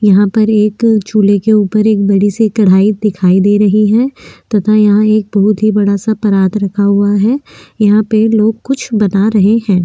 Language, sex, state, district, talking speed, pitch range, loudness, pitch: Hindi, female, Maharashtra, Aurangabad, 190 wpm, 200-215 Hz, -11 LUFS, 210 Hz